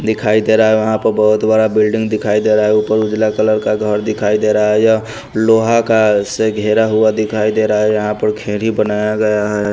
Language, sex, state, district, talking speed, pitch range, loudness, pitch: Hindi, male, Haryana, Rohtak, 235 wpm, 105-110 Hz, -14 LUFS, 110 Hz